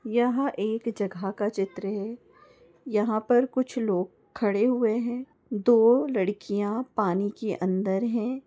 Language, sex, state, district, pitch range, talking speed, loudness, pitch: Hindi, female, Chhattisgarh, Bastar, 200-240 Hz, 135 wpm, -26 LUFS, 220 Hz